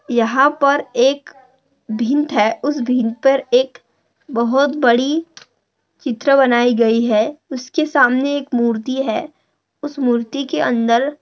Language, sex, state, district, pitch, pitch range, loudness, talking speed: Hindi, female, Maharashtra, Dhule, 265 Hz, 240-285 Hz, -16 LUFS, 130 wpm